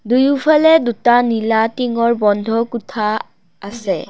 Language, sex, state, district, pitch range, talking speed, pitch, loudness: Assamese, female, Assam, Kamrup Metropolitan, 215-245 Hz, 100 wpm, 230 Hz, -15 LUFS